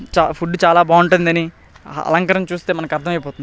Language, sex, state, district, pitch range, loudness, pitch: Telugu, male, Andhra Pradesh, Srikakulam, 160-175 Hz, -16 LUFS, 170 Hz